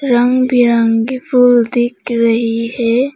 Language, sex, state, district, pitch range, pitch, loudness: Hindi, female, Arunachal Pradesh, Papum Pare, 230-250 Hz, 240 Hz, -13 LUFS